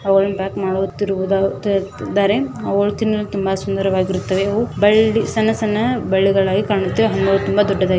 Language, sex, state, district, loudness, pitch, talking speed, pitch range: Kannada, female, Karnataka, Belgaum, -18 LUFS, 195 Hz, 90 wpm, 195-210 Hz